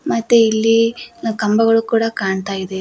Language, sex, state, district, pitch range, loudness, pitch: Kannada, female, Karnataka, Koppal, 195-230 Hz, -16 LUFS, 225 Hz